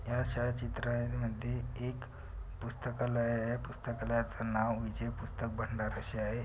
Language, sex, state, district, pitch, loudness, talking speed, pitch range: Marathi, male, Maharashtra, Pune, 115 Hz, -37 LUFS, 110 wpm, 110-120 Hz